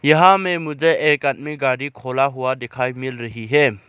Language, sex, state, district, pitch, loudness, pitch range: Hindi, male, Arunachal Pradesh, Lower Dibang Valley, 135 Hz, -18 LUFS, 130-150 Hz